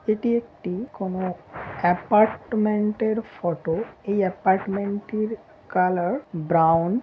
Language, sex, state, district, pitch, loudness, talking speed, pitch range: Bengali, male, West Bengal, Dakshin Dinajpur, 200 Hz, -24 LUFS, 100 wpm, 180-220 Hz